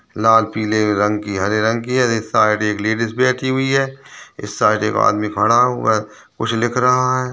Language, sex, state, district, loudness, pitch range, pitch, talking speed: Hindi, male, Chhattisgarh, Balrampur, -17 LUFS, 105-130 Hz, 115 Hz, 215 wpm